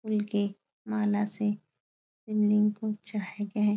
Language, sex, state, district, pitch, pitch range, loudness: Hindi, female, Uttar Pradesh, Etah, 210 Hz, 205-210 Hz, -30 LUFS